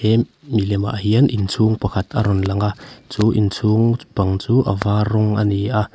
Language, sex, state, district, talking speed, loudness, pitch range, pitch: Mizo, male, Mizoram, Aizawl, 170 wpm, -18 LUFS, 100-115 Hz, 105 Hz